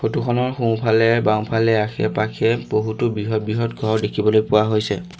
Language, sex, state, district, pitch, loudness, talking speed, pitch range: Assamese, male, Assam, Sonitpur, 110 Hz, -19 LUFS, 140 wpm, 110-115 Hz